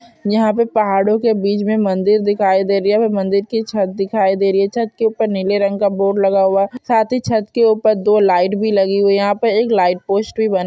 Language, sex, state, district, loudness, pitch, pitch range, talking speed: Hindi, female, Chhattisgarh, Bilaspur, -15 LUFS, 205 Hz, 195-220 Hz, 275 wpm